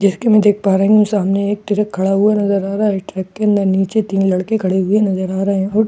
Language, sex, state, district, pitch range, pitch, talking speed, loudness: Hindi, female, Bihar, Katihar, 190-210 Hz, 200 Hz, 275 wpm, -15 LUFS